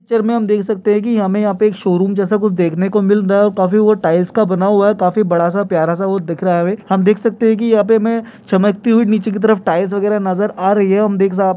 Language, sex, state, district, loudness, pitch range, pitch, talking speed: Hindi, male, Jharkhand, Jamtara, -14 LUFS, 190-215 Hz, 205 Hz, 300 wpm